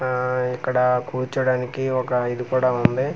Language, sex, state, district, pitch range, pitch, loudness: Telugu, male, Andhra Pradesh, Manyam, 125-130 Hz, 125 Hz, -22 LUFS